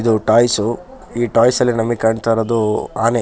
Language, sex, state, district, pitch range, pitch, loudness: Kannada, male, Karnataka, Shimoga, 110-120 Hz, 115 Hz, -16 LUFS